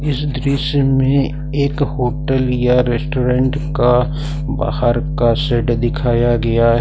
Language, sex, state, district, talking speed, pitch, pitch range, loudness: Hindi, male, Jharkhand, Ranchi, 125 wpm, 135 Hz, 120-145 Hz, -16 LUFS